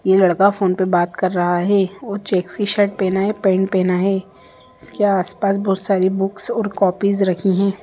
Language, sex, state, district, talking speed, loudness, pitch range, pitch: Hindi, female, Bihar, Gaya, 190 wpm, -18 LUFS, 185-200 Hz, 195 Hz